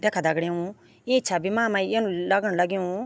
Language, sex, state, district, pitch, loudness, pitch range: Garhwali, female, Uttarakhand, Tehri Garhwal, 195 Hz, -24 LUFS, 175-215 Hz